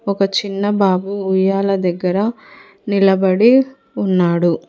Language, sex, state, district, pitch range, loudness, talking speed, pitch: Telugu, female, Telangana, Hyderabad, 190-205 Hz, -16 LUFS, 90 wpm, 195 Hz